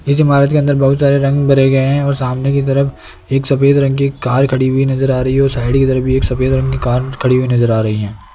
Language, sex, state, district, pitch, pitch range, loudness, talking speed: Hindi, male, Rajasthan, Jaipur, 135 Hz, 130-140 Hz, -13 LUFS, 275 wpm